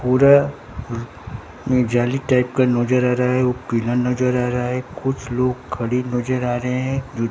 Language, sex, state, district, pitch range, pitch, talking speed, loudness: Hindi, male, Bihar, Katihar, 120-130 Hz, 125 Hz, 180 wpm, -20 LUFS